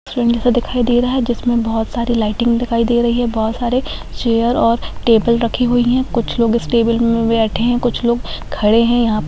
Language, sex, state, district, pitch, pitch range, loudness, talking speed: Hindi, female, Bihar, Muzaffarpur, 235 Hz, 230-240 Hz, -16 LUFS, 225 wpm